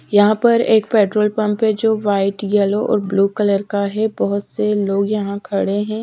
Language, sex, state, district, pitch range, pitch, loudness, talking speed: Hindi, female, Bihar, Patna, 200-215 Hz, 210 Hz, -17 LUFS, 200 wpm